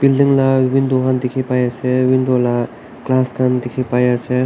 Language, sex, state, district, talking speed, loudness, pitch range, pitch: Nagamese, male, Nagaland, Kohima, 190 wpm, -16 LUFS, 125-130 Hz, 130 Hz